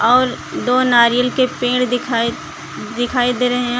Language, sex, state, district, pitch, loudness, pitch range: Hindi, female, Uttar Pradesh, Lucknow, 245 Hz, -16 LUFS, 245-250 Hz